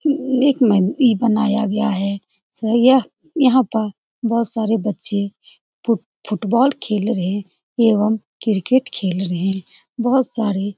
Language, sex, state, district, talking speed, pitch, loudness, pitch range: Hindi, female, Bihar, Saran, 130 wpm, 220 Hz, -18 LUFS, 200-245 Hz